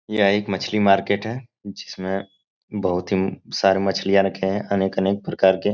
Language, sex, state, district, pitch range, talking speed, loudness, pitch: Hindi, male, Bihar, Supaul, 95-100 Hz, 165 wpm, -21 LUFS, 100 Hz